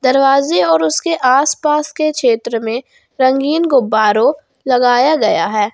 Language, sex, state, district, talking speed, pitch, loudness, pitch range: Hindi, female, Jharkhand, Garhwa, 125 wpm, 260 Hz, -13 LUFS, 220-300 Hz